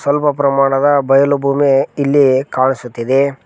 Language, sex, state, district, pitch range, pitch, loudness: Kannada, male, Karnataka, Koppal, 135-140 Hz, 140 Hz, -13 LUFS